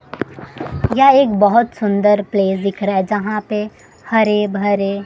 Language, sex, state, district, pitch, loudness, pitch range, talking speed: Hindi, female, Maharashtra, Mumbai Suburban, 210 Hz, -15 LUFS, 200-215 Hz, 140 wpm